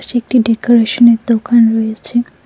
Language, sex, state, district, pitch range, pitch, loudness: Bengali, female, West Bengal, Cooch Behar, 225-240 Hz, 235 Hz, -12 LUFS